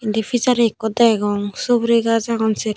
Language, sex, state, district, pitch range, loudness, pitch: Chakma, female, Tripura, Unakoti, 215-235 Hz, -18 LUFS, 225 Hz